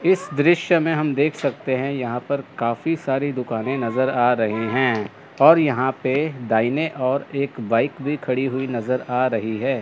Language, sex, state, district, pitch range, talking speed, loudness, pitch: Hindi, male, Chandigarh, Chandigarh, 120-145 Hz, 185 wpm, -21 LUFS, 130 Hz